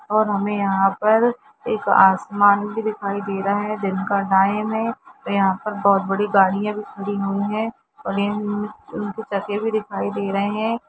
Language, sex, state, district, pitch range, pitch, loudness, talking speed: Hindi, female, Jharkhand, Sahebganj, 200-215 Hz, 205 Hz, -21 LUFS, 195 wpm